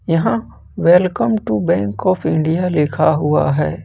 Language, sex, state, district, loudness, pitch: Hindi, male, Jharkhand, Ranchi, -16 LUFS, 155 Hz